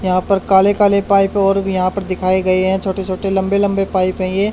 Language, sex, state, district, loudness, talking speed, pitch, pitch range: Hindi, male, Haryana, Charkhi Dadri, -15 LUFS, 250 wpm, 195 Hz, 185-195 Hz